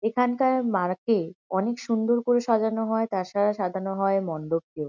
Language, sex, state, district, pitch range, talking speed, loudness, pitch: Bengali, female, West Bengal, Kolkata, 185-230 Hz, 145 wpm, -25 LUFS, 210 Hz